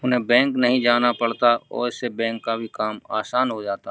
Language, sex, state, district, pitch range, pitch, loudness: Hindi, male, Uttarakhand, Uttarkashi, 115-125 Hz, 120 Hz, -21 LUFS